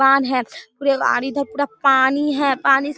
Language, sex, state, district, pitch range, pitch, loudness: Hindi, female, Bihar, Darbhanga, 265-285 Hz, 275 Hz, -18 LUFS